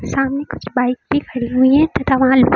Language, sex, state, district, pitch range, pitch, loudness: Hindi, female, Uttar Pradesh, Lucknow, 250-275 Hz, 260 Hz, -16 LUFS